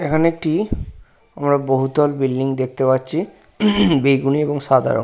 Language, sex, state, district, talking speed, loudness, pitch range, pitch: Bengali, male, West Bengal, Purulia, 130 wpm, -18 LUFS, 130-155 Hz, 140 Hz